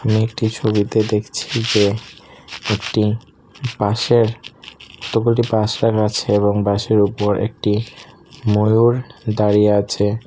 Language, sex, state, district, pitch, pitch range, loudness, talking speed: Bengali, male, Tripura, Unakoti, 110 Hz, 105-115 Hz, -18 LUFS, 90 wpm